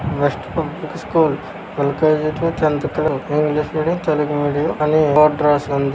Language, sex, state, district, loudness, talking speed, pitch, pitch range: Telugu, male, Andhra Pradesh, Krishna, -18 LUFS, 150 wpm, 150 Hz, 145-155 Hz